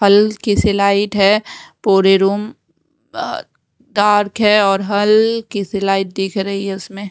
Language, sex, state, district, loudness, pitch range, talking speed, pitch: Hindi, female, Odisha, Nuapada, -15 LUFS, 195-210 Hz, 145 wpm, 200 Hz